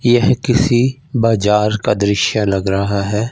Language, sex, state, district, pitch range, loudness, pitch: Hindi, male, Punjab, Fazilka, 100-120 Hz, -15 LUFS, 105 Hz